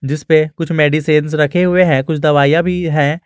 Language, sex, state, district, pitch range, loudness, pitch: Hindi, male, Jharkhand, Garhwa, 150-165 Hz, -13 LUFS, 155 Hz